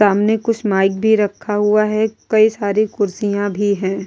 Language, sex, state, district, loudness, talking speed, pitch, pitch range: Hindi, female, Goa, North and South Goa, -17 LUFS, 190 wpm, 210 Hz, 200-220 Hz